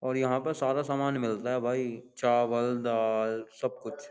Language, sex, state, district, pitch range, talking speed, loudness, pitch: Hindi, male, Uttar Pradesh, Jyotiba Phule Nagar, 115-130 Hz, 190 wpm, -30 LUFS, 125 Hz